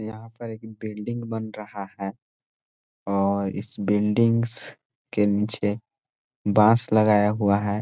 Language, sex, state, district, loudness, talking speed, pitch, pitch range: Hindi, male, Chhattisgarh, Korba, -24 LUFS, 125 wpm, 105 Hz, 100-110 Hz